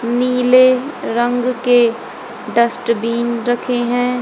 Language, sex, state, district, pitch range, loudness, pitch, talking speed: Hindi, female, Haryana, Jhajjar, 235-250 Hz, -15 LUFS, 245 Hz, 85 wpm